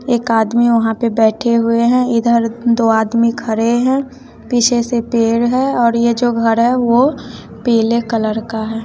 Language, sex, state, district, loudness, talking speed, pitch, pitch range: Hindi, female, Bihar, West Champaran, -14 LUFS, 175 wpm, 235 Hz, 225-240 Hz